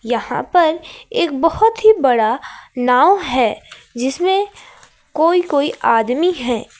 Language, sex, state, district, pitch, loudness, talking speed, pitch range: Hindi, female, Jharkhand, Ranchi, 310 Hz, -16 LUFS, 115 wpm, 250-370 Hz